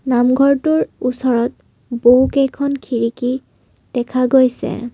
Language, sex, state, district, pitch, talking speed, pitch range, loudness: Assamese, female, Assam, Kamrup Metropolitan, 255 Hz, 75 wpm, 245-270 Hz, -16 LUFS